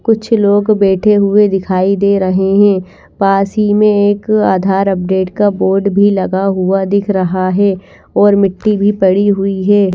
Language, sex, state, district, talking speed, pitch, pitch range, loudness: Hindi, female, Chandigarh, Chandigarh, 170 wpm, 200 Hz, 190-205 Hz, -12 LUFS